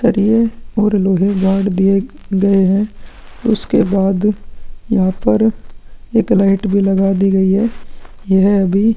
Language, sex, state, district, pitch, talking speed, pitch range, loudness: Hindi, male, Chhattisgarh, Korba, 195 Hz, 135 wpm, 190-210 Hz, -14 LUFS